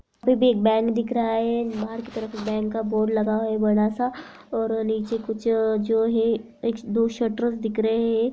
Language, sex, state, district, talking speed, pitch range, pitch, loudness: Hindi, female, Uttarakhand, Uttarkashi, 195 wpm, 220-230 Hz, 225 Hz, -24 LUFS